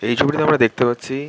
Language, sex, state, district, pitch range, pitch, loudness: Bengali, male, West Bengal, Jhargram, 120-145 Hz, 135 Hz, -18 LUFS